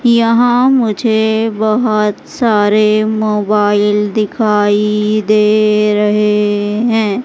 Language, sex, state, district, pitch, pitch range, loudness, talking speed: Hindi, male, Madhya Pradesh, Katni, 215 Hz, 210-220 Hz, -12 LUFS, 75 wpm